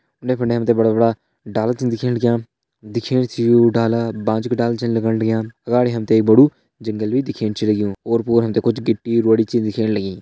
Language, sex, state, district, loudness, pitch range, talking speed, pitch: Hindi, male, Uttarakhand, Uttarkashi, -18 LUFS, 110-120 Hz, 235 wpm, 115 Hz